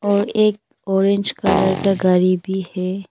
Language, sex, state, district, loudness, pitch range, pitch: Hindi, female, Arunachal Pradesh, Papum Pare, -18 LUFS, 190-200 Hz, 195 Hz